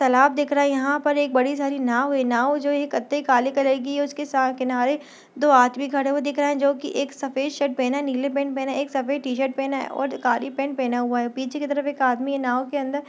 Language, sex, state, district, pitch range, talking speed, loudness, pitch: Hindi, female, Chhattisgarh, Bastar, 260-285 Hz, 230 wpm, -22 LUFS, 275 Hz